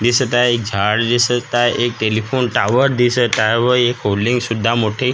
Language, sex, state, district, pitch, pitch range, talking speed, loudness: Marathi, male, Maharashtra, Gondia, 120 Hz, 110-125 Hz, 200 wpm, -16 LUFS